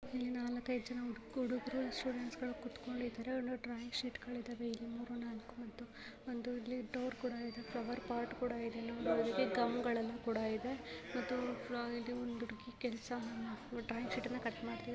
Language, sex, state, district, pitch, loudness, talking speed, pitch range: Kannada, female, Karnataka, Dharwad, 240 Hz, -42 LUFS, 150 wpm, 235-250 Hz